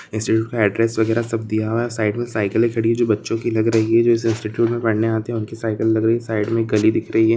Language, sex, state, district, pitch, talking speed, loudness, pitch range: Hindi, male, Jharkhand, Sahebganj, 115 Hz, 310 wpm, -19 LUFS, 110-115 Hz